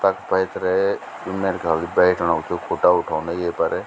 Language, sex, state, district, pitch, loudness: Garhwali, male, Uttarakhand, Tehri Garhwal, 95 Hz, -21 LUFS